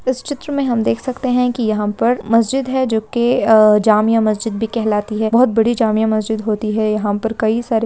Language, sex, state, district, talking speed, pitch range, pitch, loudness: Hindi, female, Uttarakhand, Tehri Garhwal, 235 wpm, 215-245 Hz, 225 Hz, -16 LUFS